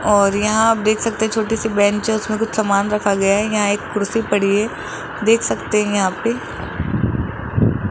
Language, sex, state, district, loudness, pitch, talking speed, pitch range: Hindi, male, Rajasthan, Jaipur, -18 LUFS, 210 Hz, 195 wpm, 200-220 Hz